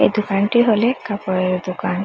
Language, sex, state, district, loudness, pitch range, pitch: Bengali, female, Assam, Hailakandi, -18 LUFS, 185-220 Hz, 200 Hz